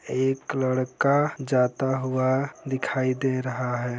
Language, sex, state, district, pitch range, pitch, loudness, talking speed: Hindi, male, Bihar, Saran, 130-135 Hz, 130 Hz, -25 LUFS, 120 wpm